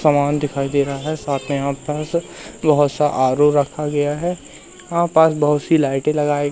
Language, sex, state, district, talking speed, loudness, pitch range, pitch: Hindi, male, Madhya Pradesh, Katni, 195 wpm, -18 LUFS, 140-155 Hz, 145 Hz